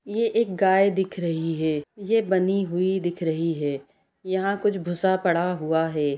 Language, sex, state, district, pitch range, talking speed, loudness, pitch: Hindi, female, Bihar, Gaya, 165-195 Hz, 175 wpm, -24 LUFS, 185 Hz